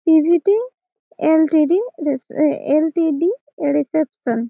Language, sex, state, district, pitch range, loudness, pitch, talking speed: Bengali, female, West Bengal, Malda, 295-355 Hz, -18 LUFS, 315 Hz, 105 wpm